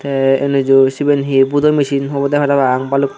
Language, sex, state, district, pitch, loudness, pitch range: Chakma, male, Tripura, Dhalai, 140 Hz, -14 LUFS, 135-140 Hz